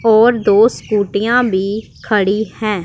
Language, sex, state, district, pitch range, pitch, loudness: Hindi, female, Punjab, Pathankot, 200-225 Hz, 215 Hz, -14 LUFS